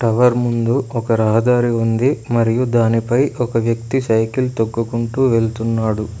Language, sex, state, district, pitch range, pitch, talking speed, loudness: Telugu, male, Telangana, Mahabubabad, 115-125 Hz, 115 Hz, 115 wpm, -17 LUFS